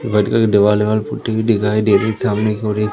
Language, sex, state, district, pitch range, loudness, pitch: Hindi, female, Madhya Pradesh, Umaria, 105-110 Hz, -16 LUFS, 105 Hz